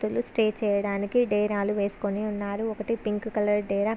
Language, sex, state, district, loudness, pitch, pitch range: Telugu, female, Andhra Pradesh, Visakhapatnam, -27 LUFS, 210 Hz, 205-220 Hz